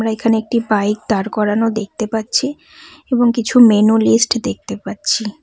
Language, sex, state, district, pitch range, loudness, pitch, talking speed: Bengali, female, West Bengal, Cooch Behar, 215-240 Hz, -16 LUFS, 225 Hz, 155 wpm